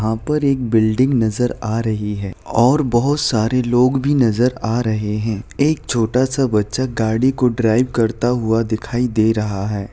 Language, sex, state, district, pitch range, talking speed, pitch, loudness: Hindi, male, Chhattisgarh, Bilaspur, 110-125 Hz, 180 wpm, 115 Hz, -17 LUFS